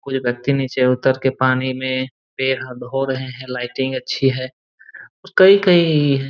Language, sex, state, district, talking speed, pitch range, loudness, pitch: Hindi, male, Jharkhand, Jamtara, 170 wpm, 130-135 Hz, -18 LUFS, 130 Hz